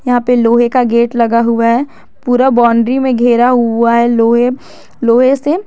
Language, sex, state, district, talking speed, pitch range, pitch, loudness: Hindi, female, Jharkhand, Garhwa, 180 wpm, 235-250 Hz, 240 Hz, -11 LUFS